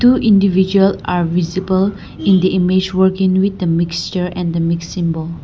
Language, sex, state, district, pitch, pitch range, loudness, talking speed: English, female, Nagaland, Dimapur, 185 Hz, 170-190 Hz, -15 LUFS, 155 wpm